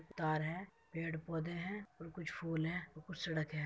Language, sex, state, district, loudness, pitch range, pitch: Hindi, female, Uttar Pradesh, Muzaffarnagar, -42 LUFS, 160-180 Hz, 165 Hz